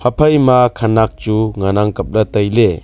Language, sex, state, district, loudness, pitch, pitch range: Wancho, male, Arunachal Pradesh, Longding, -14 LUFS, 110 Hz, 105-120 Hz